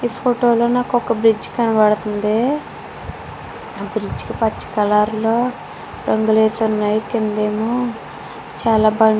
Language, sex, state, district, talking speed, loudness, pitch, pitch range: Telugu, female, Andhra Pradesh, Srikakulam, 130 wpm, -18 LUFS, 220 Hz, 215-240 Hz